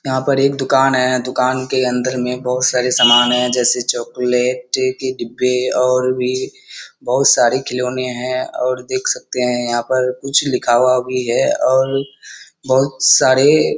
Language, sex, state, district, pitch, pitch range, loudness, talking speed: Hindi, male, Bihar, Kishanganj, 125 Hz, 125-130 Hz, -16 LUFS, 165 wpm